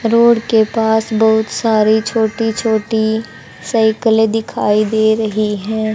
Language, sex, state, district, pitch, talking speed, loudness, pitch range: Hindi, male, Haryana, Jhajjar, 220 Hz, 120 wpm, -14 LUFS, 220-225 Hz